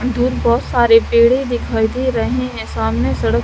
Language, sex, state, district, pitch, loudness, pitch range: Hindi, female, Haryana, Charkhi Dadri, 240 Hz, -16 LUFS, 225-250 Hz